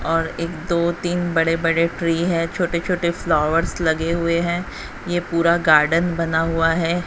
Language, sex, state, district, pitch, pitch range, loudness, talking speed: Hindi, female, Haryana, Jhajjar, 170 Hz, 165-170 Hz, -20 LUFS, 170 wpm